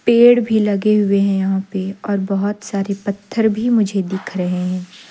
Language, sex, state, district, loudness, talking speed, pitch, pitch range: Hindi, female, Jharkhand, Deoghar, -17 LUFS, 190 wpm, 200 Hz, 195-215 Hz